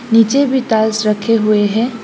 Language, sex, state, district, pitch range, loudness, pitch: Hindi, female, Assam, Hailakandi, 215-235 Hz, -14 LUFS, 225 Hz